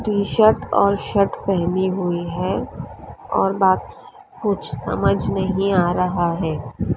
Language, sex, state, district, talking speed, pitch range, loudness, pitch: Hindi, female, Maharashtra, Mumbai Suburban, 130 wpm, 180-200 Hz, -20 LUFS, 190 Hz